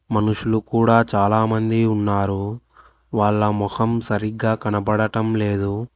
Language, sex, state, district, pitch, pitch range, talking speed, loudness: Telugu, male, Telangana, Hyderabad, 110 Hz, 105-110 Hz, 90 wpm, -20 LUFS